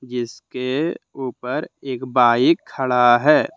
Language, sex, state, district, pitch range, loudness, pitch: Hindi, male, Jharkhand, Deoghar, 125-135 Hz, -19 LUFS, 130 Hz